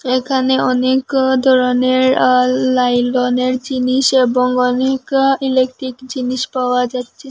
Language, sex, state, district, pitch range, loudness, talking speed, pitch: Bengali, female, Assam, Hailakandi, 250-260 Hz, -15 LUFS, 115 wpm, 255 Hz